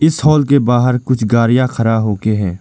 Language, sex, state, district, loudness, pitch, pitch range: Hindi, male, Arunachal Pradesh, Lower Dibang Valley, -13 LUFS, 120 Hz, 110-130 Hz